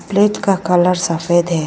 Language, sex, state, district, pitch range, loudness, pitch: Hindi, female, Arunachal Pradesh, Lower Dibang Valley, 170-195 Hz, -15 LUFS, 175 Hz